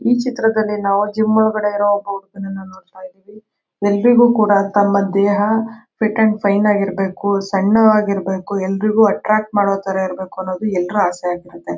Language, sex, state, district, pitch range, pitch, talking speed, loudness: Kannada, female, Karnataka, Mysore, 195-215 Hz, 200 Hz, 125 wpm, -16 LUFS